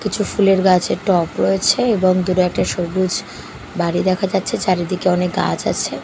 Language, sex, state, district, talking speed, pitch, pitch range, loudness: Bengali, female, Bihar, Katihar, 170 wpm, 185 Hz, 180-195 Hz, -17 LUFS